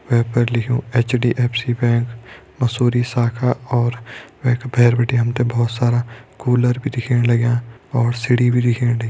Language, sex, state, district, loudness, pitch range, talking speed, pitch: Hindi, male, Uttarakhand, Tehri Garhwal, -18 LUFS, 120-125 Hz, 160 wpm, 120 Hz